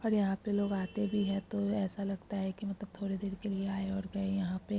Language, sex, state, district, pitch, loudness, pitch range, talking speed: Hindi, female, Rajasthan, Churu, 195 Hz, -35 LUFS, 195-205 Hz, 275 wpm